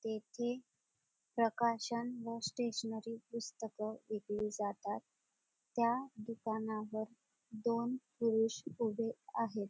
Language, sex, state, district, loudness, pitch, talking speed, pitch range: Marathi, female, Maharashtra, Dhule, -39 LUFS, 230 Hz, 80 wpm, 220-235 Hz